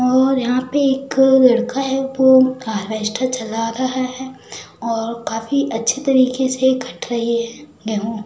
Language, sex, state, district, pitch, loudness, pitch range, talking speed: Hindi, female, Uttar Pradesh, Budaun, 255 Hz, -17 LUFS, 230-265 Hz, 145 wpm